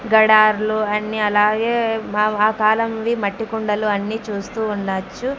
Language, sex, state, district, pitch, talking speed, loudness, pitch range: Telugu, female, Andhra Pradesh, Sri Satya Sai, 215 Hz, 135 wpm, -18 LUFS, 210-225 Hz